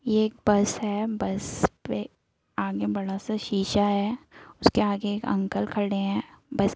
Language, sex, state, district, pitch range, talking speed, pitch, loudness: Hindi, female, Bihar, Saran, 195-215 Hz, 160 wpm, 205 Hz, -27 LUFS